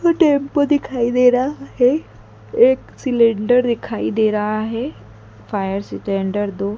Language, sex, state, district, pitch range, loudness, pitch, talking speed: Hindi, female, Madhya Pradesh, Dhar, 205-275 Hz, -18 LUFS, 235 Hz, 125 wpm